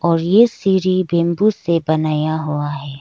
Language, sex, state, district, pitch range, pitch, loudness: Hindi, female, Arunachal Pradesh, Lower Dibang Valley, 155-185 Hz, 170 Hz, -17 LUFS